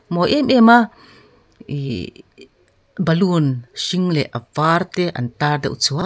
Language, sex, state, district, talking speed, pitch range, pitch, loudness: Mizo, female, Mizoram, Aizawl, 120 wpm, 135-180 Hz, 165 Hz, -17 LUFS